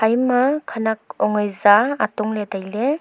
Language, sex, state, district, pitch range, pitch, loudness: Wancho, female, Arunachal Pradesh, Longding, 210-250 Hz, 220 Hz, -19 LUFS